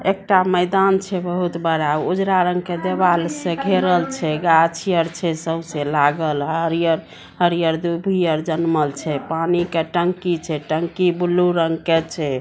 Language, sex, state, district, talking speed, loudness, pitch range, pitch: Maithili, female, Bihar, Samastipur, 160 wpm, -19 LUFS, 160-180 Hz, 170 Hz